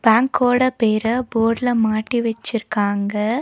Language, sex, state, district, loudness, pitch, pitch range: Tamil, female, Tamil Nadu, Nilgiris, -19 LUFS, 230 Hz, 215-245 Hz